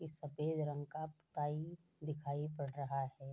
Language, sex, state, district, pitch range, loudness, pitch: Hindi, female, Bihar, Bhagalpur, 140-155 Hz, -43 LUFS, 150 Hz